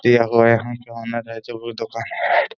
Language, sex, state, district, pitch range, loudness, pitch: Hindi, male, Bihar, Gaya, 115-120 Hz, -20 LUFS, 115 Hz